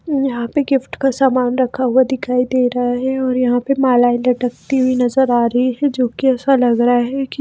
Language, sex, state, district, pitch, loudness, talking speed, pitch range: Hindi, female, Himachal Pradesh, Shimla, 255 Hz, -16 LUFS, 225 wpm, 245-270 Hz